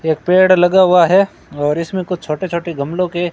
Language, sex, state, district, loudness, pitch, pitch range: Hindi, male, Rajasthan, Bikaner, -14 LUFS, 175 Hz, 160-185 Hz